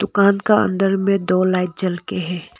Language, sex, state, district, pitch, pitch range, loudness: Hindi, female, Arunachal Pradesh, Longding, 190 Hz, 180-200 Hz, -18 LUFS